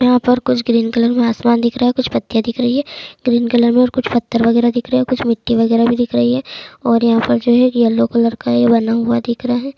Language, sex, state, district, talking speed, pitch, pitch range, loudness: Hindi, female, Uttar Pradesh, Muzaffarnagar, 240 wpm, 235 Hz, 230-245 Hz, -15 LUFS